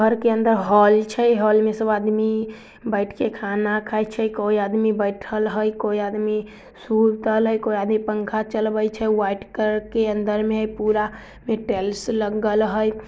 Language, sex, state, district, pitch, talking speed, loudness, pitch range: Maithili, female, Bihar, Samastipur, 215 Hz, 160 wpm, -21 LUFS, 210-220 Hz